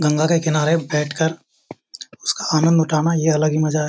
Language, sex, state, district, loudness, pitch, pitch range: Hindi, male, Bihar, Bhagalpur, -18 LUFS, 155 Hz, 155-160 Hz